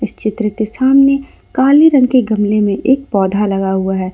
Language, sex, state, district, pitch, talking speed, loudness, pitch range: Hindi, female, Jharkhand, Ranchi, 215 Hz, 205 wpm, -13 LUFS, 200-265 Hz